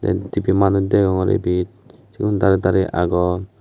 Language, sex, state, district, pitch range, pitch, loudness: Chakma, male, Tripura, West Tripura, 90-100 Hz, 95 Hz, -18 LUFS